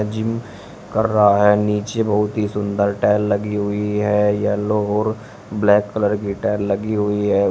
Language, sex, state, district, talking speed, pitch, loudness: Hindi, male, Uttar Pradesh, Shamli, 170 wpm, 105 Hz, -19 LUFS